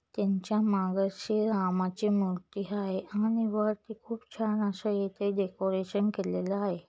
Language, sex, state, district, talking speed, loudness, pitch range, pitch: Marathi, female, Maharashtra, Solapur, 120 wpm, -31 LUFS, 190-215 Hz, 200 Hz